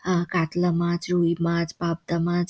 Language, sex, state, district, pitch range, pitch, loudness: Bengali, female, West Bengal, Dakshin Dinajpur, 170-175 Hz, 170 Hz, -24 LUFS